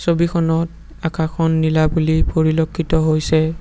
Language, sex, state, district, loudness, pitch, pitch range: Assamese, male, Assam, Sonitpur, -18 LUFS, 160 Hz, 160-165 Hz